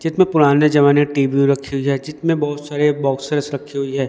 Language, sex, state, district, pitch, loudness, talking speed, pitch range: Hindi, male, Madhya Pradesh, Dhar, 145 Hz, -17 LUFS, 205 wpm, 140-150 Hz